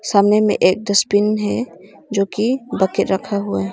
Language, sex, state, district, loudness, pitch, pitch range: Hindi, female, Arunachal Pradesh, Longding, -17 LUFS, 205 Hz, 195-215 Hz